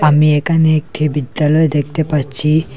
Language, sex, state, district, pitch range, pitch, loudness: Bengali, male, Assam, Hailakandi, 150-155 Hz, 150 Hz, -14 LUFS